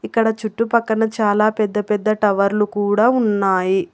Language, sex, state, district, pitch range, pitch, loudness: Telugu, female, Telangana, Hyderabad, 205-220 Hz, 210 Hz, -18 LUFS